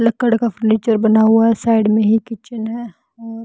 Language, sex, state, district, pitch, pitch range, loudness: Hindi, female, Bihar, Patna, 225 Hz, 220-230 Hz, -15 LUFS